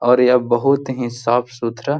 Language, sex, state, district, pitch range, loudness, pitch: Hindi, male, Bihar, Jahanabad, 120-130 Hz, -17 LUFS, 125 Hz